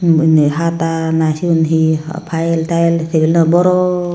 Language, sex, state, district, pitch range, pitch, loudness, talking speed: Chakma, female, Tripura, Unakoti, 160-170 Hz, 165 Hz, -14 LUFS, 130 wpm